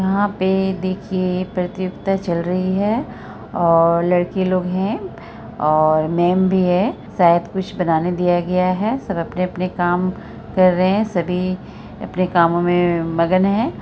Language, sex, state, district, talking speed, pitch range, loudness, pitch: Hindi, female, Bihar, Araria, 150 wpm, 175-190 Hz, -18 LUFS, 185 Hz